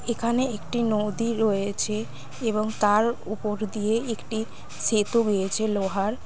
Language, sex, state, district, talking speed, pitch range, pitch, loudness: Bengali, female, West Bengal, Malda, 115 wpm, 210-230 Hz, 215 Hz, -25 LUFS